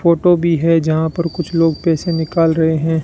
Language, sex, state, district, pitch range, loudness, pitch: Hindi, male, Rajasthan, Bikaner, 160-170 Hz, -15 LUFS, 165 Hz